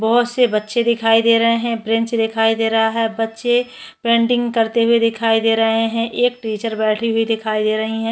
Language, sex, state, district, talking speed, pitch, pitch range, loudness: Hindi, female, Chhattisgarh, Korba, 205 wpm, 225 Hz, 225-235 Hz, -17 LUFS